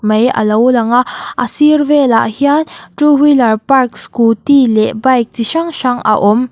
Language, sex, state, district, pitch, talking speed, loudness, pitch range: Mizo, female, Mizoram, Aizawl, 250 Hz, 175 wpm, -11 LUFS, 225-285 Hz